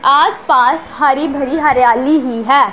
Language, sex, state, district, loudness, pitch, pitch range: Hindi, female, Punjab, Pathankot, -12 LUFS, 275 Hz, 250-305 Hz